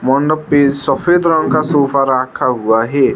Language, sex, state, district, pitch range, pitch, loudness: Hindi, male, Arunachal Pradesh, Lower Dibang Valley, 130-155 Hz, 140 Hz, -13 LUFS